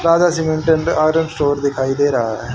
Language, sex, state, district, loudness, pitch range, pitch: Hindi, male, Haryana, Charkhi Dadri, -16 LUFS, 140-160 Hz, 155 Hz